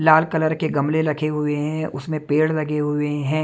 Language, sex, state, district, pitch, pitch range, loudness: Hindi, male, Maharashtra, Mumbai Suburban, 155 Hz, 150-155 Hz, -21 LUFS